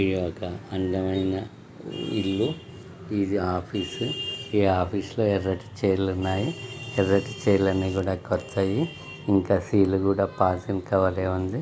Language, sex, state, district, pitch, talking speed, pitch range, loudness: Telugu, male, Telangana, Nalgonda, 95 Hz, 135 wpm, 95-105 Hz, -26 LUFS